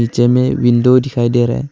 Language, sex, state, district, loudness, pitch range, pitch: Hindi, male, Arunachal Pradesh, Longding, -13 LUFS, 120-125 Hz, 120 Hz